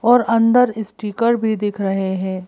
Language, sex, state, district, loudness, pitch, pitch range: Hindi, female, Madhya Pradesh, Bhopal, -18 LUFS, 220 Hz, 195-230 Hz